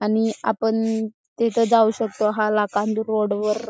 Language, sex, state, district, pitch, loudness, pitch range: Marathi, female, Maharashtra, Chandrapur, 220 Hz, -21 LUFS, 210-225 Hz